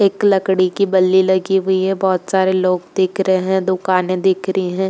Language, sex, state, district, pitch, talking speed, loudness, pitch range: Hindi, female, Uttar Pradesh, Jalaun, 190 Hz, 210 wpm, -16 LUFS, 185-190 Hz